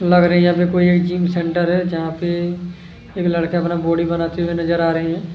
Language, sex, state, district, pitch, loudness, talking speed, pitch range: Hindi, male, Chhattisgarh, Kabirdham, 175 Hz, -18 LUFS, 235 wpm, 170-175 Hz